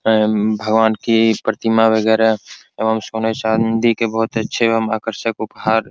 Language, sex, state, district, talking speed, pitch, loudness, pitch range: Hindi, male, Bihar, Supaul, 150 wpm, 110 Hz, -17 LUFS, 110-115 Hz